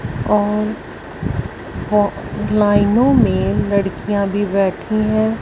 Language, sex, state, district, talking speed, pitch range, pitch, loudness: Hindi, female, Punjab, Fazilka, 80 wpm, 200-215 Hz, 205 Hz, -17 LUFS